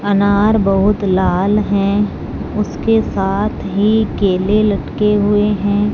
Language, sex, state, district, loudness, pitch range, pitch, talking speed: Hindi, female, Punjab, Fazilka, -15 LUFS, 200-210 Hz, 205 Hz, 110 wpm